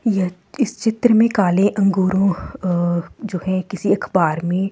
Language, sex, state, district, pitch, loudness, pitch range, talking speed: Hindi, female, Himachal Pradesh, Shimla, 195 Hz, -19 LUFS, 180-215 Hz, 140 wpm